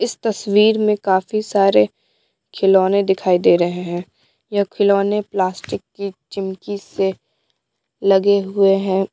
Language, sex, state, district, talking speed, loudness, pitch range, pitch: Hindi, female, Bihar, Patna, 125 wpm, -17 LUFS, 190-205 Hz, 195 Hz